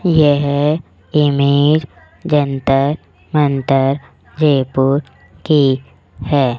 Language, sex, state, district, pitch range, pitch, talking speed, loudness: Hindi, male, Rajasthan, Jaipur, 135-150 Hz, 140 Hz, 65 wpm, -15 LUFS